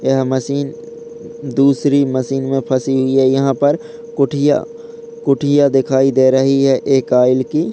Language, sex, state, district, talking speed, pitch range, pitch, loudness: Hindi, male, Bihar, Purnia, 150 wpm, 135-145 Hz, 135 Hz, -15 LUFS